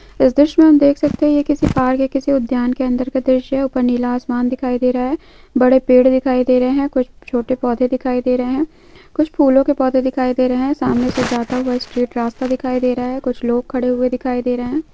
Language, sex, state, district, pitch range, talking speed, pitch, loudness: Hindi, female, Andhra Pradesh, Krishna, 250-270 Hz, 255 wpm, 255 Hz, -16 LUFS